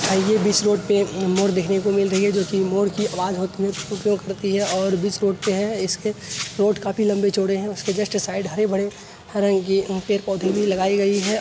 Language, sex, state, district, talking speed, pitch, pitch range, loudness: Hindi, male, Bihar, Araria, 220 wpm, 200 Hz, 195-205 Hz, -21 LUFS